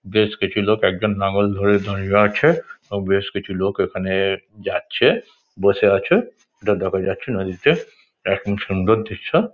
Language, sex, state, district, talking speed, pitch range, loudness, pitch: Bengali, male, West Bengal, Dakshin Dinajpur, 150 wpm, 95-105 Hz, -20 LUFS, 100 Hz